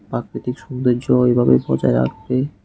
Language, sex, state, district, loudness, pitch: Bengali, male, Tripura, West Tripura, -18 LUFS, 125 Hz